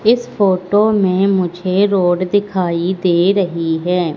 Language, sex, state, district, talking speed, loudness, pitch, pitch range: Hindi, female, Madhya Pradesh, Katni, 130 wpm, -15 LUFS, 185 Hz, 175-200 Hz